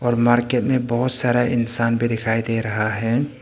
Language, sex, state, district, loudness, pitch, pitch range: Hindi, male, Arunachal Pradesh, Papum Pare, -20 LUFS, 120 Hz, 115-125 Hz